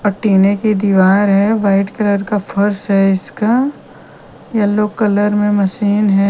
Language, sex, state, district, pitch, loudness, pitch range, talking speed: Hindi, female, Punjab, Kapurthala, 205 Hz, -14 LUFS, 195-210 Hz, 135 wpm